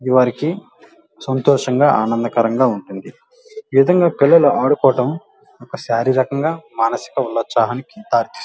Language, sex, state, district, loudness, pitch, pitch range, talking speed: Telugu, male, Andhra Pradesh, Guntur, -16 LUFS, 135 Hz, 125-170 Hz, 90 wpm